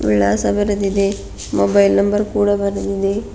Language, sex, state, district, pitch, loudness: Kannada, female, Karnataka, Bidar, 195 Hz, -17 LUFS